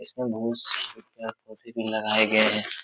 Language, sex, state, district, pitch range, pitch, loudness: Hindi, male, Uttar Pradesh, Etah, 110-115 Hz, 110 Hz, -24 LUFS